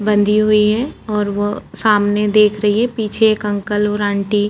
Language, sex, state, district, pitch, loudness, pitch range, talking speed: Hindi, female, Chhattisgarh, Korba, 210 Hz, -16 LUFS, 205-215 Hz, 135 wpm